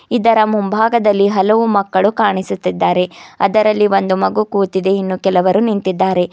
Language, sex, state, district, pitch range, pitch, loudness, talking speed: Kannada, female, Karnataka, Bidar, 190-215 Hz, 200 Hz, -14 LUFS, 115 wpm